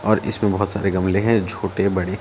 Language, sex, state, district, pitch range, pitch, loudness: Hindi, male, Delhi, New Delhi, 95-105 Hz, 100 Hz, -20 LUFS